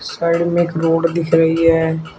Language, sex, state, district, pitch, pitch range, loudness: Hindi, male, Uttar Pradesh, Shamli, 165 Hz, 165-170 Hz, -16 LUFS